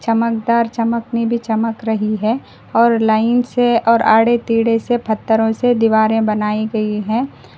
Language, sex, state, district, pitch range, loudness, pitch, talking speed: Hindi, female, Karnataka, Koppal, 220-235 Hz, -16 LUFS, 225 Hz, 150 wpm